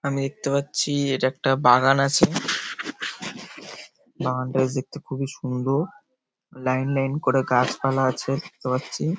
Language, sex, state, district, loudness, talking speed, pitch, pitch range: Bengali, male, West Bengal, Paschim Medinipur, -23 LUFS, 130 wpm, 135 Hz, 130-145 Hz